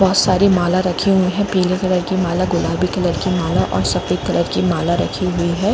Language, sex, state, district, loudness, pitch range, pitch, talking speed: Hindi, female, Jharkhand, Jamtara, -17 LUFS, 175-185 Hz, 185 Hz, 200 wpm